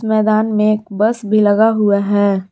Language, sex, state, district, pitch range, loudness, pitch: Hindi, female, Jharkhand, Garhwa, 205-215 Hz, -14 LUFS, 215 Hz